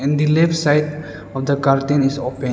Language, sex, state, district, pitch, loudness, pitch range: English, male, Arunachal Pradesh, Lower Dibang Valley, 145 Hz, -17 LUFS, 135-150 Hz